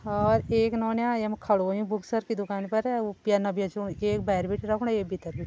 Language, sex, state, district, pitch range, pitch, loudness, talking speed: Garhwali, female, Uttarakhand, Tehri Garhwal, 200-225 Hz, 210 Hz, -28 LUFS, 240 wpm